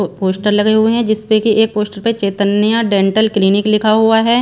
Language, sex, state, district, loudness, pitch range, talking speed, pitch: Hindi, female, Haryana, Charkhi Dadri, -13 LUFS, 200-220 Hz, 215 wpm, 215 Hz